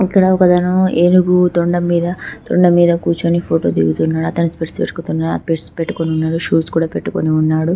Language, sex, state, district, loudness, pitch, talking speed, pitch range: Telugu, female, Telangana, Karimnagar, -15 LUFS, 170 Hz, 140 wpm, 160-180 Hz